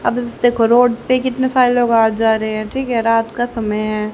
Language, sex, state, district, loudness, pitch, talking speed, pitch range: Hindi, female, Haryana, Jhajjar, -16 LUFS, 235 Hz, 245 wpm, 220-245 Hz